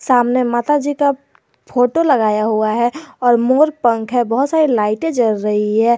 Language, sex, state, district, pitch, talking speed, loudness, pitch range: Hindi, male, Jharkhand, Garhwa, 245 Hz, 180 wpm, -15 LUFS, 220-285 Hz